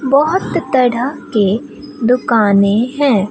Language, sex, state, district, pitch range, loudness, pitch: Hindi, female, Bihar, Katihar, 215-280 Hz, -14 LUFS, 250 Hz